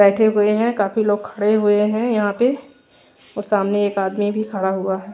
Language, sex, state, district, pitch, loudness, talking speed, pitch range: Hindi, female, Odisha, Khordha, 210 Hz, -19 LUFS, 210 wpm, 200-220 Hz